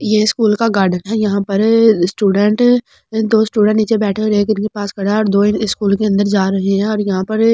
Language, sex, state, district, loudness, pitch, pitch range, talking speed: Hindi, female, Delhi, New Delhi, -14 LUFS, 210 Hz, 200-220 Hz, 240 wpm